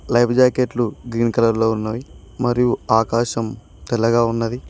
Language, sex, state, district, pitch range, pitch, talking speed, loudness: Telugu, male, Telangana, Mahabubabad, 115-120 Hz, 115 Hz, 130 wpm, -19 LUFS